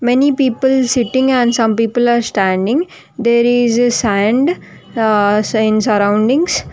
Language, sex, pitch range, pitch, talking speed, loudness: English, female, 215-255 Hz, 235 Hz, 135 wpm, -14 LUFS